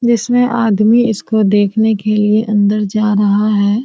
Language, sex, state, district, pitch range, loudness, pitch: Hindi, female, Bihar, Kishanganj, 205-220 Hz, -13 LUFS, 215 Hz